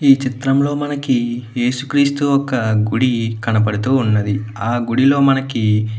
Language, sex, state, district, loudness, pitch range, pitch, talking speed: Telugu, male, Andhra Pradesh, Anantapur, -17 LUFS, 110-135 Hz, 125 Hz, 140 wpm